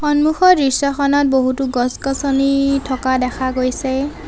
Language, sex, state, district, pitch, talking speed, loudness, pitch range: Assamese, female, Assam, Sonitpur, 275 Hz, 100 wpm, -16 LUFS, 260-280 Hz